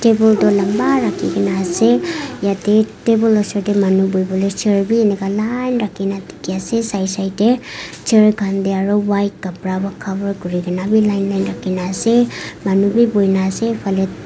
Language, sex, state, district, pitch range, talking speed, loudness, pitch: Nagamese, female, Nagaland, Kohima, 190-215 Hz, 165 wpm, -16 LUFS, 200 Hz